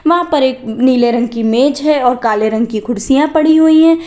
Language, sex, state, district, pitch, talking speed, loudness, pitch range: Hindi, female, Uttar Pradesh, Lalitpur, 260 Hz, 235 wpm, -12 LUFS, 235-310 Hz